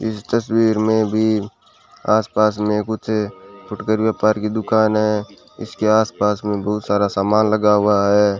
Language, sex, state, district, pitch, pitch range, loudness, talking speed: Hindi, male, Rajasthan, Bikaner, 105 Hz, 105-110 Hz, -18 LUFS, 150 wpm